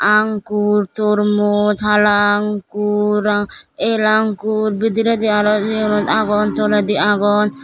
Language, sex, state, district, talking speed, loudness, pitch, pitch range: Chakma, female, Tripura, Dhalai, 100 wpm, -16 LUFS, 210 Hz, 210-215 Hz